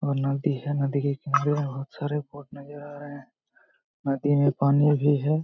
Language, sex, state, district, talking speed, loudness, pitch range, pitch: Hindi, male, Jharkhand, Jamtara, 200 wpm, -25 LUFS, 140-145 Hz, 145 Hz